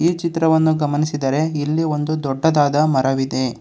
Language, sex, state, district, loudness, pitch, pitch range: Kannada, male, Karnataka, Bangalore, -18 LUFS, 150 Hz, 135-160 Hz